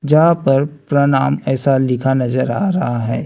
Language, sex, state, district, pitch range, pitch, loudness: Hindi, male, Maharashtra, Gondia, 130-150 Hz, 135 Hz, -16 LUFS